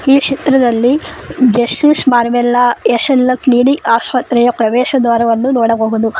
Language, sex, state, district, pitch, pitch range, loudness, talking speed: Kannada, female, Karnataka, Koppal, 245 Hz, 235-265 Hz, -12 LUFS, 105 wpm